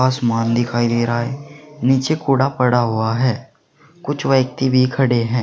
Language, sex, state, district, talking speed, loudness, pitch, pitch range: Hindi, male, Uttar Pradesh, Saharanpur, 165 wpm, -18 LUFS, 130 Hz, 120-135 Hz